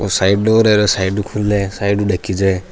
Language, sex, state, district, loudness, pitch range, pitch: Rajasthani, male, Rajasthan, Churu, -15 LUFS, 95-105 Hz, 100 Hz